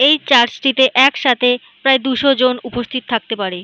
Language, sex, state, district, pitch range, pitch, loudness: Bengali, female, West Bengal, Malda, 240-270 Hz, 255 Hz, -14 LUFS